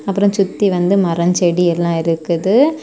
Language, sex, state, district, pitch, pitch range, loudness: Tamil, female, Tamil Nadu, Kanyakumari, 180 Hz, 170-200 Hz, -15 LUFS